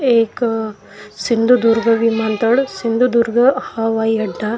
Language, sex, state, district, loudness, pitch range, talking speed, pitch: Marathi, male, Maharashtra, Washim, -16 LUFS, 225-235 Hz, 90 wpm, 230 Hz